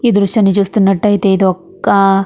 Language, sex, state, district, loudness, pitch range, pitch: Telugu, female, Andhra Pradesh, Guntur, -12 LUFS, 195-205 Hz, 200 Hz